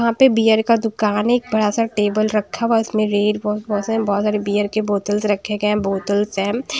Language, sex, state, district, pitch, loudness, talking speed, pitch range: Hindi, female, Punjab, Kapurthala, 210 Hz, -18 LUFS, 230 wpm, 205-225 Hz